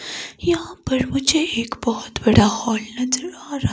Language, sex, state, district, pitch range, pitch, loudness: Hindi, female, Himachal Pradesh, Shimla, 230-300 Hz, 255 Hz, -20 LUFS